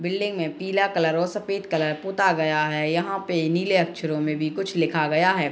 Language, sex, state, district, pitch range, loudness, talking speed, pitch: Hindi, female, Bihar, Gopalganj, 155-195 Hz, -23 LUFS, 215 wpm, 170 Hz